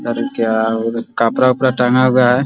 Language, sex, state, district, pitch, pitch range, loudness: Hindi, male, Bihar, Muzaffarpur, 125 Hz, 115-130 Hz, -15 LUFS